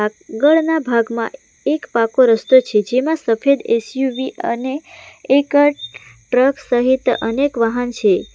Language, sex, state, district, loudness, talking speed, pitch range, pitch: Gujarati, female, Gujarat, Valsad, -16 LUFS, 115 wpm, 230-280 Hz, 255 Hz